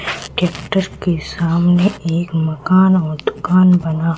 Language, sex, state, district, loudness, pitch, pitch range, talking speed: Hindi, female, Madhya Pradesh, Katni, -16 LUFS, 175 Hz, 165-185 Hz, 115 wpm